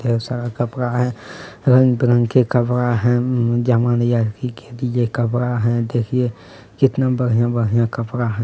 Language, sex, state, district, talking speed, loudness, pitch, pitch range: Hindi, male, Bihar, Kishanganj, 105 wpm, -18 LUFS, 120 Hz, 115-125 Hz